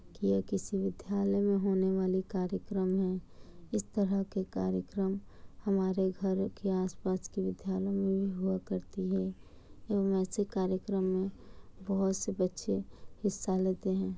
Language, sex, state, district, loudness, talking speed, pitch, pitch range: Hindi, female, Bihar, Kishanganj, -33 LUFS, 145 wpm, 190 Hz, 185-195 Hz